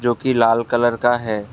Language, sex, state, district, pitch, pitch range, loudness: Hindi, male, Assam, Kamrup Metropolitan, 120 Hz, 115-120 Hz, -18 LUFS